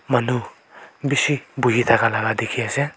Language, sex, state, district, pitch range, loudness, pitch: Nagamese, male, Nagaland, Kohima, 115-140 Hz, -20 LUFS, 125 Hz